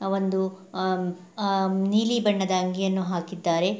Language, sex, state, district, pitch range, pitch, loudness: Kannada, female, Karnataka, Mysore, 185-195 Hz, 190 Hz, -25 LUFS